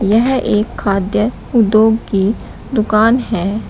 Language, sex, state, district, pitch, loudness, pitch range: Hindi, male, Uttar Pradesh, Shamli, 220 Hz, -14 LUFS, 210-225 Hz